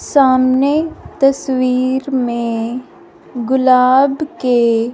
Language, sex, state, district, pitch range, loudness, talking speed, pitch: Hindi, female, Punjab, Fazilka, 250-275 Hz, -14 LUFS, 60 wpm, 255 Hz